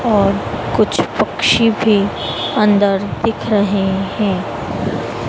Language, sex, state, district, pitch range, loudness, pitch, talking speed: Hindi, female, Madhya Pradesh, Dhar, 195-215 Hz, -16 LUFS, 205 Hz, 90 wpm